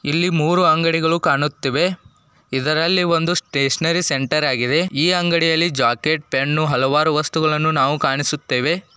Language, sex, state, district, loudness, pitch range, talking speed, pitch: Kannada, male, Karnataka, Dakshina Kannada, -18 LUFS, 140-170 Hz, 105 wpm, 155 Hz